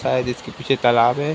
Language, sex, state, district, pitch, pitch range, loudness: Hindi, male, Uttar Pradesh, Ghazipur, 125 Hz, 120-145 Hz, -19 LUFS